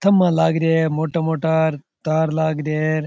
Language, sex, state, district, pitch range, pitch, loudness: Rajasthani, male, Rajasthan, Churu, 155-165 Hz, 160 Hz, -19 LUFS